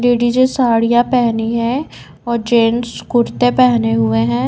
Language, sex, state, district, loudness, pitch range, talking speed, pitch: Hindi, female, Bihar, Katihar, -14 LUFS, 230-245 Hz, 135 wpm, 240 Hz